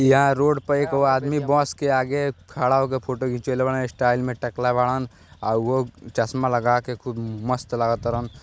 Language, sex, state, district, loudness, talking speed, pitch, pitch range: Bhojpuri, male, Uttar Pradesh, Gorakhpur, -23 LUFS, 180 wpm, 125 Hz, 120-135 Hz